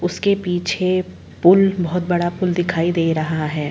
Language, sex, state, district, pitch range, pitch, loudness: Hindi, female, Uttar Pradesh, Jalaun, 165-185 Hz, 175 Hz, -18 LUFS